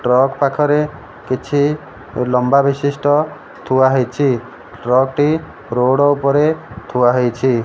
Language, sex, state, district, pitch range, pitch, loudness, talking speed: Odia, male, Odisha, Malkangiri, 125-145 Hz, 135 Hz, -16 LUFS, 100 wpm